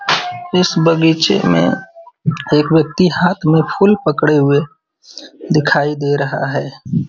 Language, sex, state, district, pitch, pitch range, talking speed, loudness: Hindi, male, Uttar Pradesh, Varanasi, 160 Hz, 150-185 Hz, 120 wpm, -14 LUFS